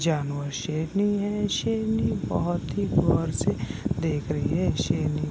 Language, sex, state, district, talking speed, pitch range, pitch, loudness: Hindi, male, Bihar, Sitamarhi, 145 wpm, 150-205 Hz, 160 Hz, -26 LUFS